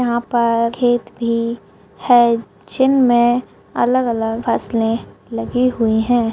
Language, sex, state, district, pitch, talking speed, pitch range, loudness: Hindi, female, Chhattisgarh, Kabirdham, 235 Hz, 105 wpm, 230-245 Hz, -17 LUFS